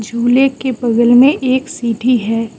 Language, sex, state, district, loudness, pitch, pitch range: Hindi, female, Mizoram, Aizawl, -13 LUFS, 245 Hz, 230-260 Hz